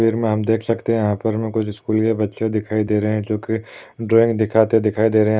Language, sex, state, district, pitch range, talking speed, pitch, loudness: Hindi, male, Uttar Pradesh, Jalaun, 110-115 Hz, 255 wpm, 110 Hz, -19 LUFS